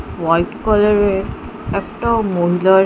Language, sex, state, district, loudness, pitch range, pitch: Bengali, female, West Bengal, Jhargram, -16 LUFS, 175-210 Hz, 190 Hz